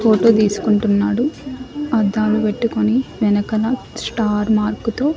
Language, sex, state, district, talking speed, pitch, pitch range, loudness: Telugu, male, Andhra Pradesh, Annamaya, 95 wpm, 220 Hz, 210-245 Hz, -18 LUFS